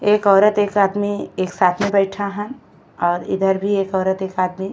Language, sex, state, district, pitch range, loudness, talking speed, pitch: Bhojpuri, female, Uttar Pradesh, Gorakhpur, 190-205 Hz, -18 LUFS, 215 wpm, 195 Hz